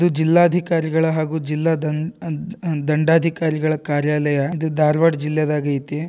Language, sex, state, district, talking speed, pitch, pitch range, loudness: Kannada, male, Karnataka, Dharwad, 120 wpm, 155 Hz, 150-165 Hz, -19 LUFS